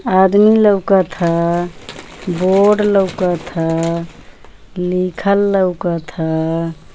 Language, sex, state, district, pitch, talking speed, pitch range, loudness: Bhojpuri, female, Uttar Pradesh, Ghazipur, 180 Hz, 80 wpm, 170-195 Hz, -15 LUFS